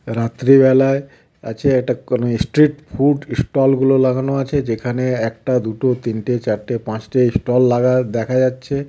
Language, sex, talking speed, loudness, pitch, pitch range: Bengali, male, 130 wpm, -17 LUFS, 125 Hz, 120-135 Hz